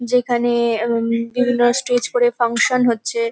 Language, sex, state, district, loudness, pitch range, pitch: Bengali, female, West Bengal, North 24 Parganas, -18 LUFS, 235-250 Hz, 240 Hz